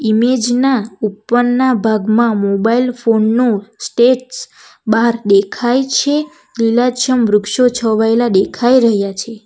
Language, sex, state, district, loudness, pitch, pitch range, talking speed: Gujarati, female, Gujarat, Valsad, -14 LUFS, 235 Hz, 220-250 Hz, 100 wpm